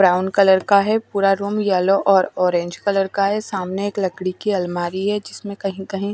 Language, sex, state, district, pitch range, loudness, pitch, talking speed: Hindi, female, Punjab, Pathankot, 185-200 Hz, -19 LUFS, 195 Hz, 215 wpm